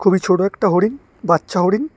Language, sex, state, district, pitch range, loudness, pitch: Bengali, male, Tripura, West Tripura, 180-210 Hz, -17 LUFS, 190 Hz